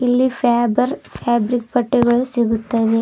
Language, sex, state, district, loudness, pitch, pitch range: Kannada, female, Karnataka, Bidar, -18 LUFS, 240 Hz, 235-250 Hz